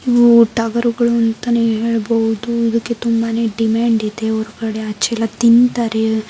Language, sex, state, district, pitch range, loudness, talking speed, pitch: Kannada, male, Karnataka, Mysore, 225-235 Hz, -16 LUFS, 125 wpm, 230 Hz